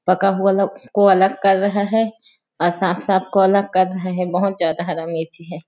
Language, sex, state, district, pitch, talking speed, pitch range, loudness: Hindi, female, Chhattisgarh, Sarguja, 190 Hz, 210 wpm, 180-200 Hz, -18 LUFS